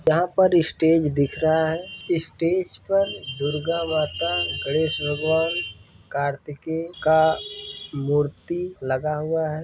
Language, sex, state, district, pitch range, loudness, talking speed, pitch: Hindi, male, Rajasthan, Churu, 145-170 Hz, -23 LUFS, 110 wpm, 160 Hz